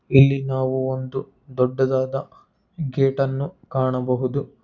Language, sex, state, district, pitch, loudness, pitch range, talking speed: Kannada, male, Karnataka, Bangalore, 135 Hz, -22 LUFS, 130-135 Hz, 90 wpm